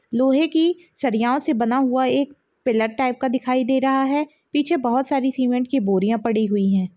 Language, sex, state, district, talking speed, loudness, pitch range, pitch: Hindi, female, Chhattisgarh, Rajnandgaon, 205 wpm, -21 LUFS, 240-275 Hz, 260 Hz